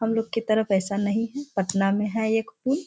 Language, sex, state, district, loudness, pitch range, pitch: Hindi, female, Bihar, Sitamarhi, -25 LUFS, 200-225 Hz, 220 Hz